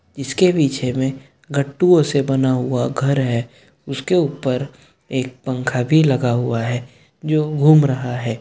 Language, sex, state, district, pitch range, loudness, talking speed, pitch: Hindi, male, Bihar, Gopalganj, 125-145 Hz, -18 LUFS, 150 wpm, 135 Hz